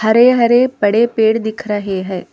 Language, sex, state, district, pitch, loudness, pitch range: Hindi, female, Telangana, Hyderabad, 220 Hz, -14 LUFS, 205-240 Hz